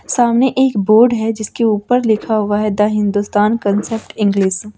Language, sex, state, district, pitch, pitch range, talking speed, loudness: Hindi, female, Chhattisgarh, Raipur, 215 Hz, 205-230 Hz, 175 wpm, -15 LUFS